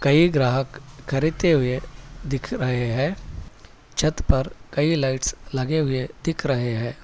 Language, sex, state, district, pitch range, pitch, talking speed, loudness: Hindi, male, Telangana, Hyderabad, 130-155 Hz, 135 Hz, 135 wpm, -23 LUFS